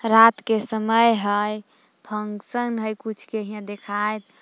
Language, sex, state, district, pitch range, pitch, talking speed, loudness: Magahi, female, Jharkhand, Palamu, 210-225 Hz, 215 Hz, 135 wpm, -22 LUFS